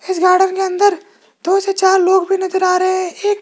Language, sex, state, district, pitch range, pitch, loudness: Hindi, male, Rajasthan, Jaipur, 370-385 Hz, 375 Hz, -14 LUFS